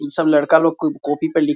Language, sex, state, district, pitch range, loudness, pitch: Hindi, male, Bihar, Muzaffarpur, 150-160 Hz, -17 LUFS, 155 Hz